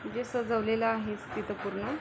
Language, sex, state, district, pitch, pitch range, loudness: Marathi, female, Maharashtra, Aurangabad, 225 Hz, 220-240 Hz, -32 LUFS